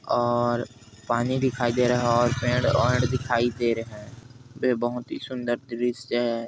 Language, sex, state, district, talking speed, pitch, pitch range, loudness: Hindi, male, Chhattisgarh, Kabirdham, 175 wpm, 120 Hz, 120-125 Hz, -25 LUFS